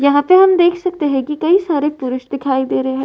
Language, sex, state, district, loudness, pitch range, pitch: Hindi, female, Uttar Pradesh, Varanasi, -15 LUFS, 265-350 Hz, 290 Hz